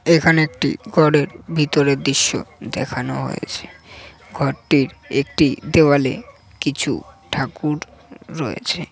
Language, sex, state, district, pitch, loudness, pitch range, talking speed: Bengali, male, West Bengal, Jhargram, 150 Hz, -19 LUFS, 140-160 Hz, 95 wpm